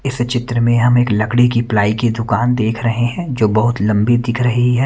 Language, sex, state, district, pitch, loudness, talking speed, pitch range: Hindi, male, Haryana, Rohtak, 120 Hz, -15 LUFS, 235 wpm, 115-120 Hz